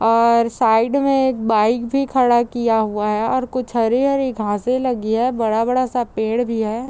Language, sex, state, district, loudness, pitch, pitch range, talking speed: Hindi, female, Bihar, Gopalganj, -18 LUFS, 235 Hz, 225-255 Hz, 210 wpm